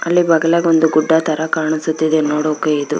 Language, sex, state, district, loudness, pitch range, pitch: Kannada, female, Karnataka, Bellary, -15 LUFS, 155-160 Hz, 160 Hz